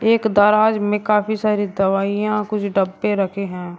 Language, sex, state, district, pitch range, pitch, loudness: Hindi, male, Uttar Pradesh, Shamli, 195-215 Hz, 205 Hz, -18 LUFS